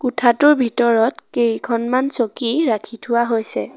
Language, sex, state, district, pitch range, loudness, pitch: Assamese, female, Assam, Sonitpur, 230-260 Hz, -17 LUFS, 240 Hz